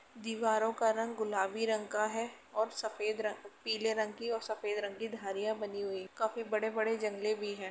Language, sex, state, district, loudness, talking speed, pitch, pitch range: Hindi, female, Uttar Pradesh, Etah, -35 LUFS, 205 wpm, 220 Hz, 210-225 Hz